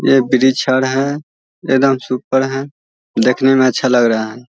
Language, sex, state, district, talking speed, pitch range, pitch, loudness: Hindi, male, Bihar, Vaishali, 160 wpm, 125-135 Hz, 130 Hz, -15 LUFS